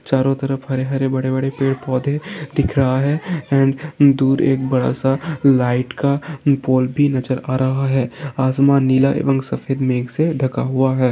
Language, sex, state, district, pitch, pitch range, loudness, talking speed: Hindi, male, Rajasthan, Nagaur, 135 Hz, 130-140 Hz, -18 LUFS, 180 wpm